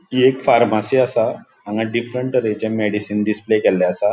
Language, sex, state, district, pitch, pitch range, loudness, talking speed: Konkani, male, Goa, North and South Goa, 110 Hz, 105-125 Hz, -18 LUFS, 160 wpm